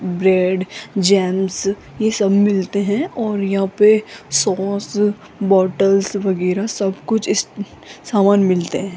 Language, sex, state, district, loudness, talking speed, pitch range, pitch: Hindi, female, Rajasthan, Jaipur, -17 LUFS, 120 wpm, 190-205 Hz, 195 Hz